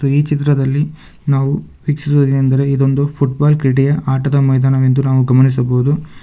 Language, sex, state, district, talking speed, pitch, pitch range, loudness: Kannada, male, Karnataka, Bangalore, 115 wpm, 140 Hz, 135-145 Hz, -14 LUFS